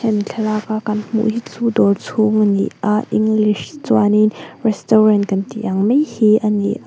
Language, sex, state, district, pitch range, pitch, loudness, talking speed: Mizo, female, Mizoram, Aizawl, 205-220 Hz, 215 Hz, -16 LUFS, 185 wpm